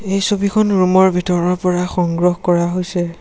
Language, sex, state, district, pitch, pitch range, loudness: Assamese, male, Assam, Sonitpur, 180 Hz, 175-190 Hz, -16 LUFS